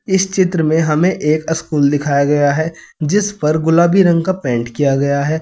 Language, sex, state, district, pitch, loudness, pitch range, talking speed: Hindi, male, Uttar Pradesh, Saharanpur, 160 Hz, -15 LUFS, 145-175 Hz, 200 wpm